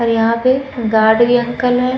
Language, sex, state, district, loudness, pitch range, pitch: Hindi, female, Uttar Pradesh, Muzaffarnagar, -14 LUFS, 230-250 Hz, 240 Hz